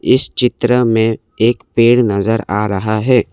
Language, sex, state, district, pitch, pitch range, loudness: Hindi, male, Assam, Kamrup Metropolitan, 115 Hz, 105-120 Hz, -14 LUFS